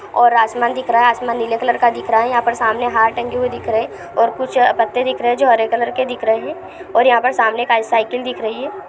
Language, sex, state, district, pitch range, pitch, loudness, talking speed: Hindi, female, Bihar, Lakhisarai, 230-245 Hz, 235 Hz, -16 LUFS, 285 wpm